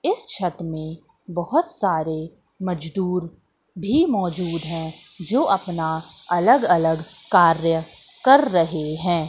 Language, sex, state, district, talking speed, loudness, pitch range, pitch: Hindi, female, Madhya Pradesh, Katni, 110 wpm, -21 LUFS, 160-195 Hz, 175 Hz